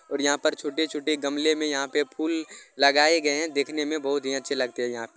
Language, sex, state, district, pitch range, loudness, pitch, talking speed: Hindi, male, Bihar, Jamui, 140-155 Hz, -25 LUFS, 145 Hz, 255 wpm